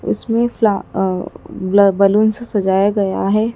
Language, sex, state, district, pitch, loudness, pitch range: Hindi, female, Madhya Pradesh, Dhar, 205 Hz, -16 LUFS, 195-220 Hz